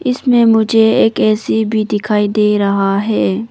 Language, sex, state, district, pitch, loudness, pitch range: Hindi, female, Arunachal Pradesh, Papum Pare, 215 Hz, -13 LUFS, 210-225 Hz